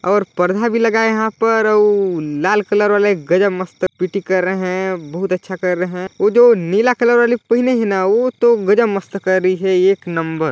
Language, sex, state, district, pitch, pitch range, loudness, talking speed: Hindi, male, Chhattisgarh, Balrampur, 195 Hz, 185-220 Hz, -15 LUFS, 220 wpm